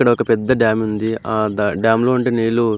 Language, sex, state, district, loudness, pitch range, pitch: Telugu, male, Andhra Pradesh, Anantapur, -17 LUFS, 110-120 Hz, 115 Hz